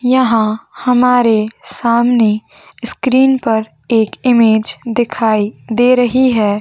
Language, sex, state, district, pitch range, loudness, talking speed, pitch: Hindi, female, Maharashtra, Nagpur, 220-250 Hz, -13 LUFS, 100 wpm, 235 Hz